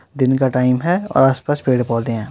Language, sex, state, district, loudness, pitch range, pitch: Hindi, male, Uttar Pradesh, Muzaffarnagar, -17 LUFS, 125-145 Hz, 130 Hz